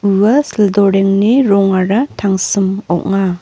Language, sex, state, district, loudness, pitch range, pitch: Garo, female, Meghalaya, North Garo Hills, -13 LUFS, 195-205 Hz, 195 Hz